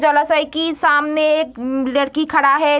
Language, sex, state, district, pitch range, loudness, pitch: Hindi, female, Bihar, Begusarai, 280-310 Hz, -16 LUFS, 300 Hz